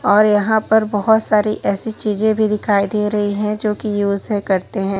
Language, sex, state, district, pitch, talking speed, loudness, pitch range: Hindi, male, Chhattisgarh, Raipur, 210 Hz, 205 wpm, -17 LUFS, 205-215 Hz